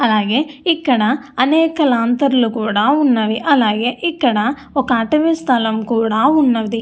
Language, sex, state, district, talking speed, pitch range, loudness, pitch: Telugu, female, Andhra Pradesh, Anantapur, 105 wpm, 225-285 Hz, -15 LUFS, 255 Hz